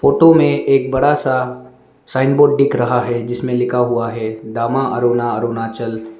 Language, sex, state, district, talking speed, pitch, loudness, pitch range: Hindi, male, Arunachal Pradesh, Lower Dibang Valley, 165 wpm, 125 Hz, -16 LUFS, 115-130 Hz